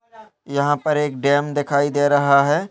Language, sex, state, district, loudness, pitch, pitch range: Hindi, male, West Bengal, Dakshin Dinajpur, -18 LUFS, 145 Hz, 140-150 Hz